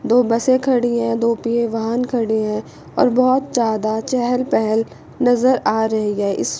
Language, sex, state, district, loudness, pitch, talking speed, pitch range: Hindi, female, Chandigarh, Chandigarh, -18 LUFS, 235 Hz, 175 wpm, 220-250 Hz